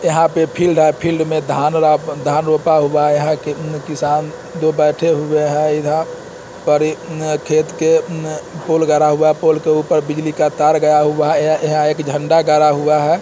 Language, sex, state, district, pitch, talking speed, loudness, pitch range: Hindi, male, Bihar, Muzaffarpur, 155 Hz, 200 wpm, -15 LUFS, 150-160 Hz